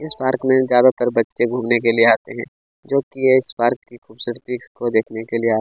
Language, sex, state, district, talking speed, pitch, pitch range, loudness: Hindi, male, Chhattisgarh, Kabirdham, 225 wpm, 120 Hz, 115-130 Hz, -18 LUFS